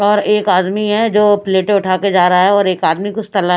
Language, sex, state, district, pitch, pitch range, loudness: Hindi, female, Chhattisgarh, Raipur, 200 Hz, 185-210 Hz, -13 LUFS